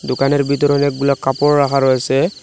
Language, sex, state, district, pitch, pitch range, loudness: Bengali, male, Assam, Hailakandi, 140 Hz, 135-145 Hz, -15 LUFS